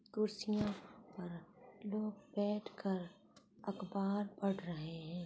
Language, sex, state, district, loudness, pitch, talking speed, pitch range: Hindi, female, Bihar, Muzaffarpur, -41 LUFS, 200 Hz, 105 wpm, 185-210 Hz